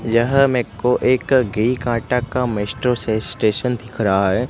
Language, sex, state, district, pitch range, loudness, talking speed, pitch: Hindi, male, Gujarat, Gandhinagar, 110-125 Hz, -19 LUFS, 175 wpm, 120 Hz